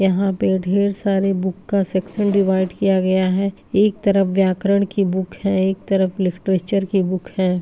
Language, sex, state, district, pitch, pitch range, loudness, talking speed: Hindi, female, Bihar, Darbhanga, 195 Hz, 185-200 Hz, -19 LUFS, 180 wpm